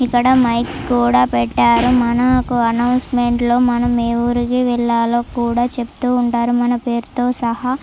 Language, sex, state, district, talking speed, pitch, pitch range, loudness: Telugu, female, Andhra Pradesh, Chittoor, 140 wpm, 240 Hz, 235-250 Hz, -16 LUFS